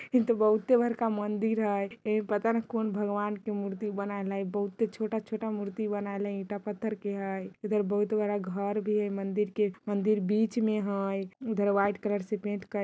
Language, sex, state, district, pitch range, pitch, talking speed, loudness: Bajjika, female, Bihar, Vaishali, 200-215 Hz, 210 Hz, 200 wpm, -30 LUFS